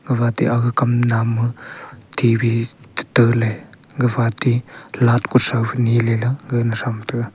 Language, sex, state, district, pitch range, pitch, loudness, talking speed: Wancho, male, Arunachal Pradesh, Longding, 115-125 Hz, 120 Hz, -18 LUFS, 155 wpm